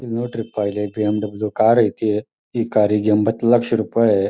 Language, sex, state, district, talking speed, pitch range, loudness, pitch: Kannada, male, Karnataka, Dharwad, 155 wpm, 105-115 Hz, -19 LUFS, 110 Hz